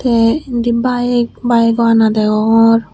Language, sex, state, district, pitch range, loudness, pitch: Chakma, female, Tripura, Unakoti, 225-245 Hz, -13 LUFS, 230 Hz